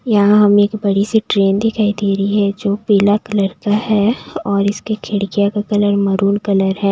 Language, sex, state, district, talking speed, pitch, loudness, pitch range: Hindi, female, Maharashtra, Mumbai Suburban, 200 wpm, 205 Hz, -15 LUFS, 200-210 Hz